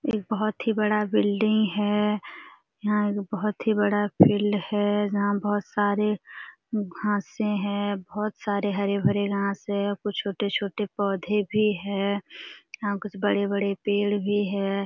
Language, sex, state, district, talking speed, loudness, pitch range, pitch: Hindi, female, Jharkhand, Sahebganj, 145 wpm, -26 LUFS, 200-210 Hz, 205 Hz